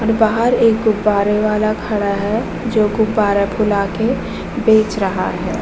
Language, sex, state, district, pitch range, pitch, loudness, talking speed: Hindi, female, Bihar, Vaishali, 200-220 Hz, 215 Hz, -16 LUFS, 150 wpm